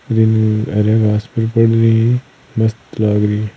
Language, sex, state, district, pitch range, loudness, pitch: Hindi, male, Rajasthan, Churu, 105-115 Hz, -15 LUFS, 110 Hz